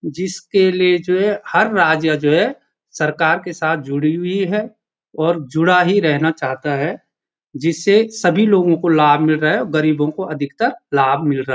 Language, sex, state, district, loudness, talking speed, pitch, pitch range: Hindi, male, Uttarakhand, Uttarkashi, -16 LUFS, 185 wpm, 165 Hz, 150-190 Hz